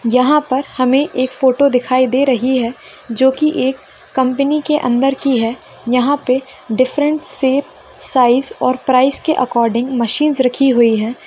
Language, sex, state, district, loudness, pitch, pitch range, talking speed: Hindi, female, West Bengal, Kolkata, -15 LUFS, 260 Hz, 250-275 Hz, 160 wpm